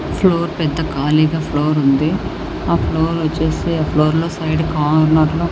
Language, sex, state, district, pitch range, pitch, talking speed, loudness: Telugu, male, Andhra Pradesh, Anantapur, 155-165 Hz, 155 Hz, 130 wpm, -16 LUFS